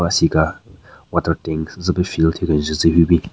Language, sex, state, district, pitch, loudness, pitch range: Rengma, male, Nagaland, Kohima, 85 Hz, -18 LUFS, 80-85 Hz